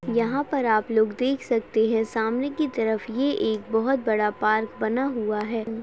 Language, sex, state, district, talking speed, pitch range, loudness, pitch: Hindi, female, Bihar, Saharsa, 185 wpm, 220-255 Hz, -24 LUFS, 225 Hz